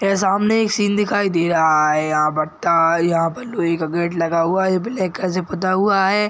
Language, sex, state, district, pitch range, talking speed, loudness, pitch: Hindi, male, Chhattisgarh, Bilaspur, 165-195 Hz, 250 wpm, -18 LUFS, 185 Hz